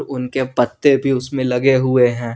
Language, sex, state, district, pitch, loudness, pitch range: Hindi, male, Jharkhand, Garhwa, 130 Hz, -17 LUFS, 125-135 Hz